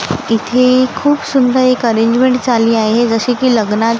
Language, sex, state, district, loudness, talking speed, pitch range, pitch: Marathi, female, Maharashtra, Gondia, -12 LUFS, 165 wpm, 230-255 Hz, 245 Hz